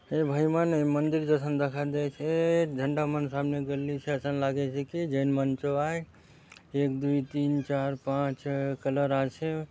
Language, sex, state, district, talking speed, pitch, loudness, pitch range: Halbi, male, Chhattisgarh, Bastar, 155 wpm, 145 Hz, -29 LUFS, 140-150 Hz